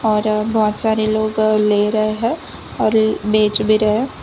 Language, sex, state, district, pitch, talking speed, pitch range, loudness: Hindi, female, Gujarat, Valsad, 215 Hz, 170 wpm, 215-220 Hz, -16 LUFS